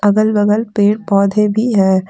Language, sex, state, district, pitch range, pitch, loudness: Hindi, female, Jharkhand, Deoghar, 200-215 Hz, 210 Hz, -13 LUFS